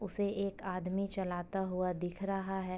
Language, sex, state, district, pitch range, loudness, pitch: Hindi, female, Uttar Pradesh, Ghazipur, 185-195 Hz, -37 LUFS, 190 Hz